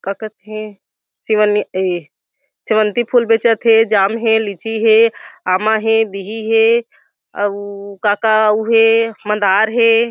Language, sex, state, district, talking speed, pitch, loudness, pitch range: Chhattisgarhi, female, Chhattisgarh, Jashpur, 140 wpm, 220 Hz, -15 LUFS, 205-225 Hz